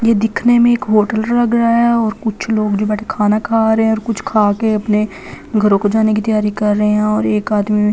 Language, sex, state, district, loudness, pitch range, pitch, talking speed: Hindi, female, Delhi, New Delhi, -14 LUFS, 210-225 Hz, 215 Hz, 255 wpm